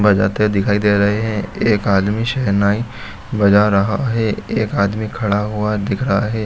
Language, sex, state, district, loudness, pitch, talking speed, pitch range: Hindi, male, Chhattisgarh, Bilaspur, -17 LUFS, 105 Hz, 165 wpm, 100-110 Hz